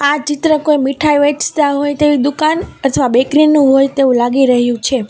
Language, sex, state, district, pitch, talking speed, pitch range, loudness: Gujarati, female, Gujarat, Valsad, 285 Hz, 190 wpm, 270-300 Hz, -12 LUFS